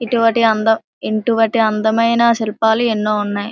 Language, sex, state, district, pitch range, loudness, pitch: Telugu, female, Andhra Pradesh, Srikakulam, 215-230 Hz, -15 LUFS, 225 Hz